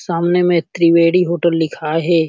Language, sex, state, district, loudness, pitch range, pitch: Chhattisgarhi, male, Chhattisgarh, Sarguja, -15 LUFS, 165-175 Hz, 170 Hz